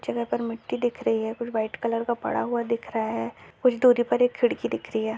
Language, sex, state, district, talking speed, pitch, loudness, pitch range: Hindi, male, Maharashtra, Solapur, 265 wpm, 230 Hz, -26 LUFS, 220-240 Hz